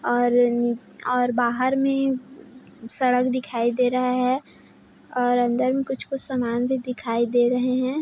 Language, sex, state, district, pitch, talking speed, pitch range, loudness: Hindi, female, Chhattisgarh, Bilaspur, 250 Hz, 150 wpm, 245-260 Hz, -23 LUFS